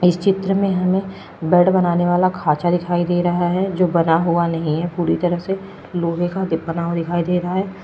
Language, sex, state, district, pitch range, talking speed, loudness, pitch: Hindi, female, Uttar Pradesh, Lalitpur, 170-185 Hz, 220 wpm, -19 LUFS, 175 Hz